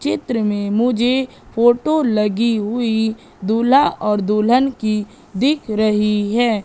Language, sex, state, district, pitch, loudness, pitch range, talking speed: Hindi, female, Madhya Pradesh, Katni, 225 Hz, -17 LUFS, 210-245 Hz, 115 wpm